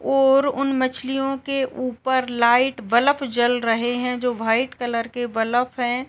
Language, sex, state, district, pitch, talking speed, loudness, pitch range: Hindi, female, Uttar Pradesh, Gorakhpur, 250 Hz, 165 wpm, -21 LUFS, 240-265 Hz